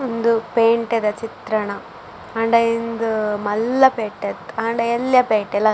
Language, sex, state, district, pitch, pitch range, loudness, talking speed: Tulu, female, Karnataka, Dakshina Kannada, 225 Hz, 215-230 Hz, -19 LUFS, 145 wpm